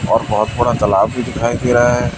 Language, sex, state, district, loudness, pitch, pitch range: Hindi, male, Chhattisgarh, Raipur, -15 LUFS, 120 Hz, 110-120 Hz